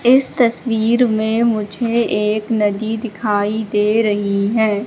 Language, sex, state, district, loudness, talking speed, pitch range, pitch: Hindi, female, Madhya Pradesh, Katni, -17 LUFS, 125 wpm, 210-235 Hz, 220 Hz